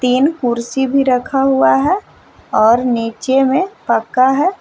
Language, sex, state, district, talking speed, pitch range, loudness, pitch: Hindi, female, Jharkhand, Palamu, 145 wpm, 240-270 Hz, -14 LUFS, 260 Hz